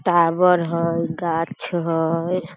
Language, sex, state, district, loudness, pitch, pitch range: Maithili, female, Bihar, Samastipur, -20 LUFS, 170 Hz, 165-180 Hz